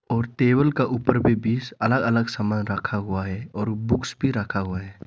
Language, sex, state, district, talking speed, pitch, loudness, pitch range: Hindi, male, Arunachal Pradesh, Lower Dibang Valley, 215 wpm, 115 Hz, -23 LUFS, 105-125 Hz